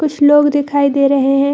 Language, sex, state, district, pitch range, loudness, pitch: Hindi, female, Bihar, Gaya, 275-290 Hz, -12 LUFS, 285 Hz